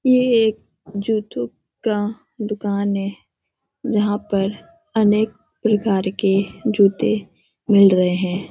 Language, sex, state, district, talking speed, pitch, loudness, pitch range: Hindi, female, Uttar Pradesh, Varanasi, 105 wpm, 210 Hz, -19 LUFS, 195-220 Hz